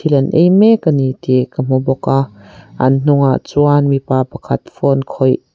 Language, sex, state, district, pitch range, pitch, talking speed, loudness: Mizo, female, Mizoram, Aizawl, 130-145 Hz, 135 Hz, 185 wpm, -14 LUFS